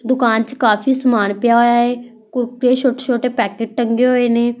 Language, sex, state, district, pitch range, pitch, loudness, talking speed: Punjabi, female, Punjab, Fazilka, 230-250 Hz, 240 Hz, -16 LUFS, 155 wpm